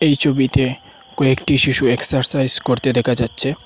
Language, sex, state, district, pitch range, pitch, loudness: Bengali, male, Assam, Hailakandi, 125-135 Hz, 135 Hz, -14 LUFS